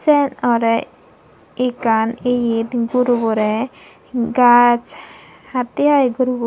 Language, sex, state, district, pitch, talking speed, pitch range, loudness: Chakma, female, Tripura, Dhalai, 245 Hz, 85 wpm, 230-255 Hz, -17 LUFS